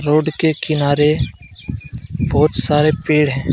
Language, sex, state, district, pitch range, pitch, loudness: Hindi, male, Jharkhand, Deoghar, 135-155 Hz, 150 Hz, -16 LUFS